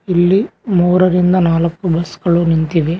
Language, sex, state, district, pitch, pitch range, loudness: Kannada, male, Karnataka, Koppal, 175 Hz, 170-185 Hz, -14 LUFS